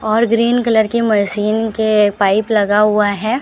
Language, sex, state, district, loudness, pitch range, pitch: Hindi, female, Rajasthan, Bikaner, -14 LUFS, 210-225 Hz, 215 Hz